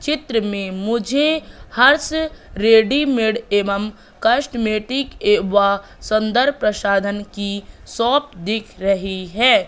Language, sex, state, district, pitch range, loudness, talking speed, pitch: Hindi, female, Madhya Pradesh, Katni, 200-265 Hz, -18 LUFS, 95 wpm, 220 Hz